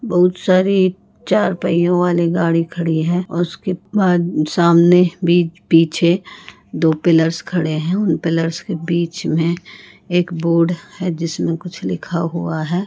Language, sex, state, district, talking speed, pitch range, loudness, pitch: Hindi, female, Goa, North and South Goa, 140 wpm, 165-180 Hz, -17 LUFS, 170 Hz